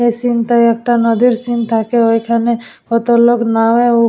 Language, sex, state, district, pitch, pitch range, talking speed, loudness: Bengali, female, West Bengal, Purulia, 235 Hz, 230-240 Hz, 190 wpm, -13 LUFS